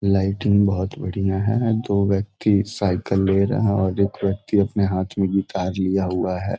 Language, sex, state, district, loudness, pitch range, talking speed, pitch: Hindi, male, Bihar, Gopalganj, -21 LUFS, 95-100 Hz, 175 wpm, 100 Hz